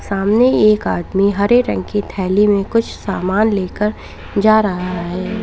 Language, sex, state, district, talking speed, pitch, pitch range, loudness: Hindi, female, Uttar Pradesh, Lalitpur, 155 wpm, 205 Hz, 195-215 Hz, -16 LUFS